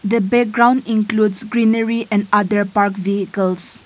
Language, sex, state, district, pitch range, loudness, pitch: English, female, Nagaland, Kohima, 200-230 Hz, -17 LUFS, 215 Hz